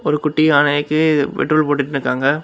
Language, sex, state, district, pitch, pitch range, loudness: Tamil, male, Tamil Nadu, Kanyakumari, 150 Hz, 145-155 Hz, -16 LUFS